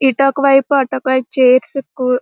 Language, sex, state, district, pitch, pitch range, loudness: Telugu, female, Andhra Pradesh, Srikakulam, 265 Hz, 255-275 Hz, -14 LUFS